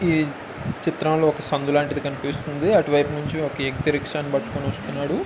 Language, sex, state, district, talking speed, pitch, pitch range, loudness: Telugu, male, Andhra Pradesh, Anantapur, 180 wpm, 145 Hz, 140-155 Hz, -23 LUFS